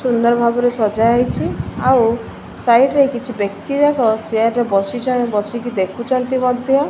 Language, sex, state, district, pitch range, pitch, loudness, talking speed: Odia, female, Odisha, Malkangiri, 225-255 Hz, 240 Hz, -16 LUFS, 140 wpm